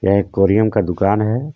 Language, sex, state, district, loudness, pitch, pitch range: Hindi, male, Jharkhand, Deoghar, -16 LUFS, 105 Hz, 95-110 Hz